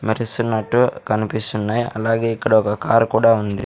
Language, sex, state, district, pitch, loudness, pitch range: Telugu, male, Andhra Pradesh, Sri Satya Sai, 110 Hz, -18 LUFS, 110-115 Hz